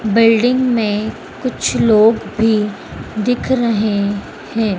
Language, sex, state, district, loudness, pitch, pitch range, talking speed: Hindi, female, Madhya Pradesh, Dhar, -16 LUFS, 220 Hz, 210-235 Hz, 100 wpm